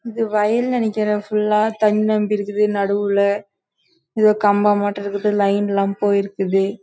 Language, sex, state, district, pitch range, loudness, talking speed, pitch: Tamil, female, Karnataka, Chamarajanagar, 200-215 Hz, -18 LUFS, 80 wpm, 205 Hz